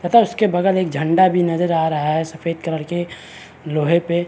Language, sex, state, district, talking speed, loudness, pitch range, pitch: Hindi, male, Chhattisgarh, Bilaspur, 210 wpm, -18 LUFS, 160-180 Hz, 170 Hz